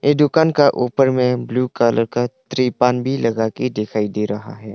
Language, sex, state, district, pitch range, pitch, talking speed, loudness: Hindi, male, Arunachal Pradesh, Longding, 110-130 Hz, 125 Hz, 175 wpm, -18 LUFS